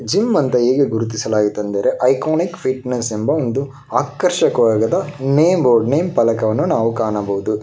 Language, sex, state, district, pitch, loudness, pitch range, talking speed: Kannada, male, Karnataka, Bangalore, 120 Hz, -17 LUFS, 110-140 Hz, 120 wpm